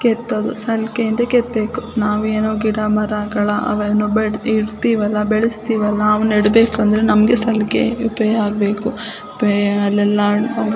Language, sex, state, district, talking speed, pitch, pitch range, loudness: Kannada, female, Karnataka, Chamarajanagar, 125 wpm, 215 Hz, 210-225 Hz, -17 LUFS